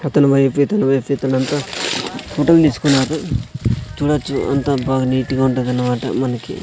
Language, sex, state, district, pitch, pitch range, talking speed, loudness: Telugu, male, Andhra Pradesh, Sri Satya Sai, 135 Hz, 130-145 Hz, 120 wpm, -17 LUFS